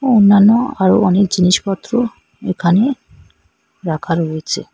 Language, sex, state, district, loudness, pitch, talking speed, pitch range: Bengali, female, West Bengal, Alipurduar, -14 LUFS, 190 Hz, 100 wpm, 175-225 Hz